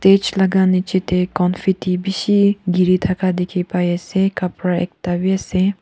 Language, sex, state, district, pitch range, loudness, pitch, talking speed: Nagamese, female, Nagaland, Kohima, 180-190 Hz, -18 LUFS, 185 Hz, 145 wpm